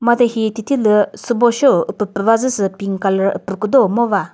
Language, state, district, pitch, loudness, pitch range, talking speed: Chakhesang, Nagaland, Dimapur, 215 Hz, -16 LUFS, 195-235 Hz, 205 wpm